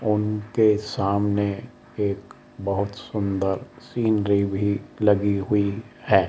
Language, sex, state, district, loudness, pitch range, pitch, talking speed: Hindi, male, Rajasthan, Jaipur, -24 LUFS, 100-110 Hz, 105 Hz, 95 wpm